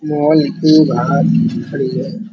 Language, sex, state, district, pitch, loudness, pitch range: Hindi, male, Uttar Pradesh, Muzaffarnagar, 170 Hz, -14 LUFS, 155-200 Hz